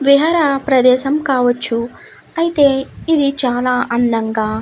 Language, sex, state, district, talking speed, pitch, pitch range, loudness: Telugu, female, Andhra Pradesh, Krishna, 90 wpm, 260 Hz, 245-280 Hz, -15 LUFS